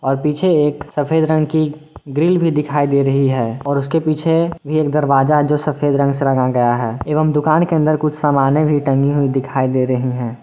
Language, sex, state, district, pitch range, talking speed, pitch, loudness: Hindi, male, Jharkhand, Garhwa, 135-155 Hz, 220 wpm, 145 Hz, -16 LUFS